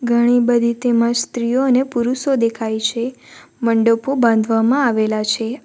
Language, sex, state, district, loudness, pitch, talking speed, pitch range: Gujarati, female, Gujarat, Valsad, -17 LUFS, 235 Hz, 125 wpm, 230-245 Hz